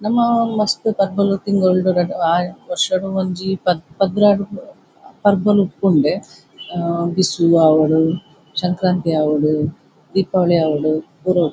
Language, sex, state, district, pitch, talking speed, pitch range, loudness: Tulu, female, Karnataka, Dakshina Kannada, 180 Hz, 95 wpm, 165-195 Hz, -17 LUFS